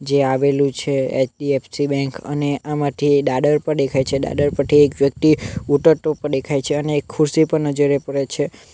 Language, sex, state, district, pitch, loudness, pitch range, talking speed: Gujarati, male, Gujarat, Navsari, 140 Hz, -18 LUFS, 140-145 Hz, 180 wpm